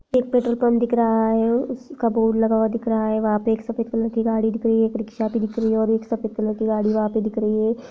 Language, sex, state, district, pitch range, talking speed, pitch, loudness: Hindi, female, Jharkhand, Jamtara, 220-230 Hz, 310 wpm, 225 Hz, -21 LUFS